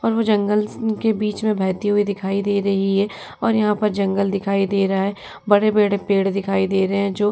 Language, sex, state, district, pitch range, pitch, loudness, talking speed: Hindi, female, Uttar Pradesh, Etah, 195-210 Hz, 200 Hz, -20 LUFS, 245 wpm